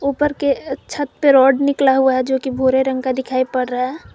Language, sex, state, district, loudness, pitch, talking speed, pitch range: Hindi, female, Jharkhand, Garhwa, -17 LUFS, 265 Hz, 245 wpm, 260-280 Hz